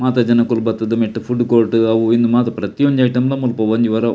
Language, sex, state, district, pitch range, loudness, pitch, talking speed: Tulu, male, Karnataka, Dakshina Kannada, 115-125 Hz, -16 LUFS, 115 Hz, 245 wpm